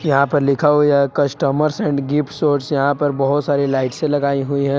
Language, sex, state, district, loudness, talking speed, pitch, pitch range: Hindi, male, Jharkhand, Palamu, -17 LUFS, 225 wpm, 140 Hz, 140-150 Hz